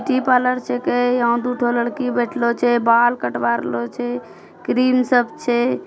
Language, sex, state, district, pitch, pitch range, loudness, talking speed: Angika, female, Bihar, Bhagalpur, 240 Hz, 230-250 Hz, -19 LUFS, 145 wpm